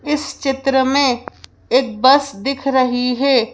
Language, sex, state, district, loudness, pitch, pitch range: Hindi, female, Madhya Pradesh, Bhopal, -16 LUFS, 265 Hz, 250-275 Hz